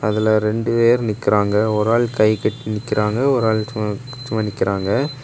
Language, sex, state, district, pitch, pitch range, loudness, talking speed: Tamil, male, Tamil Nadu, Kanyakumari, 110 Hz, 105-115 Hz, -18 LUFS, 135 wpm